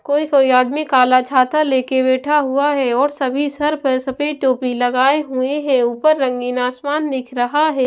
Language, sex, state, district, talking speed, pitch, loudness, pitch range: Hindi, female, Maharashtra, Washim, 190 wpm, 265 Hz, -16 LUFS, 255-290 Hz